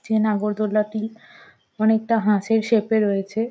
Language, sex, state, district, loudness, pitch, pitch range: Bengali, female, West Bengal, Jhargram, -21 LUFS, 220 Hz, 210-225 Hz